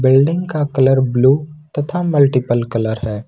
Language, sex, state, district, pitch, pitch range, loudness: Hindi, male, Jharkhand, Ranchi, 135 Hz, 120-150 Hz, -16 LUFS